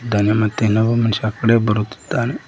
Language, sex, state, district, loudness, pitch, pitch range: Kannada, male, Karnataka, Koppal, -18 LUFS, 110 Hz, 105-115 Hz